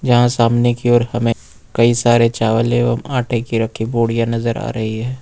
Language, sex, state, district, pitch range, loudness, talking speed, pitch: Hindi, male, Jharkhand, Ranchi, 115-120 Hz, -16 LUFS, 195 wpm, 115 Hz